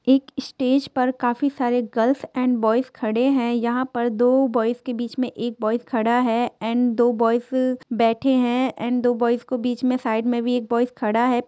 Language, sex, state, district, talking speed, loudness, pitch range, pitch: Hindi, female, Jharkhand, Sahebganj, 195 wpm, -21 LUFS, 235-255 Hz, 245 Hz